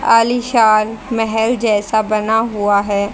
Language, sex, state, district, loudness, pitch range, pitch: Hindi, female, Haryana, Charkhi Dadri, -15 LUFS, 210-230 Hz, 220 Hz